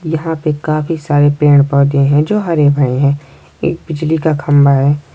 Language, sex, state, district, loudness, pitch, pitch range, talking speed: Hindi, male, Chhattisgarh, Sukma, -13 LUFS, 145 Hz, 140-160 Hz, 185 wpm